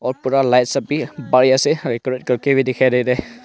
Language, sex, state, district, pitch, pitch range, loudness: Hindi, male, Arunachal Pradesh, Longding, 130 Hz, 125-140 Hz, -17 LUFS